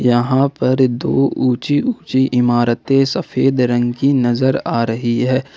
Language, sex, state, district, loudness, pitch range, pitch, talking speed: Hindi, male, Jharkhand, Ranchi, -16 LUFS, 120-135 Hz, 130 Hz, 140 wpm